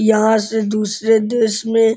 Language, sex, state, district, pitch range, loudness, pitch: Hindi, male, Uttar Pradesh, Gorakhpur, 215-225 Hz, -16 LUFS, 220 Hz